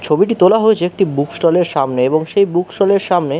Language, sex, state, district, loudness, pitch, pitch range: Bengali, male, West Bengal, Kolkata, -14 LUFS, 180 Hz, 160-200 Hz